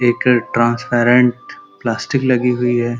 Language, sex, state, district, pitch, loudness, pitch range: Hindi, male, Uttar Pradesh, Gorakhpur, 120 Hz, -16 LUFS, 120-125 Hz